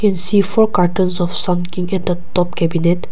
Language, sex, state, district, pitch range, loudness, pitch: English, female, Nagaland, Kohima, 175-190 Hz, -17 LUFS, 180 Hz